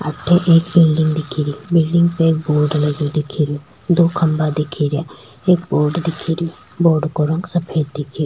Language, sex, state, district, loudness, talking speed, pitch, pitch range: Rajasthani, female, Rajasthan, Churu, -17 LUFS, 180 wpm, 155 Hz, 150-170 Hz